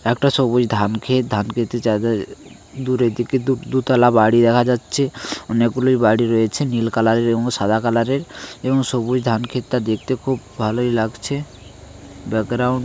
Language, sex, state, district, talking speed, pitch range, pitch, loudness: Bengali, male, West Bengal, Paschim Medinipur, 150 wpm, 110-130 Hz, 120 Hz, -19 LUFS